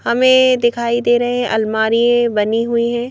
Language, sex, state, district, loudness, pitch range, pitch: Hindi, female, Madhya Pradesh, Bhopal, -15 LUFS, 230-240 Hz, 240 Hz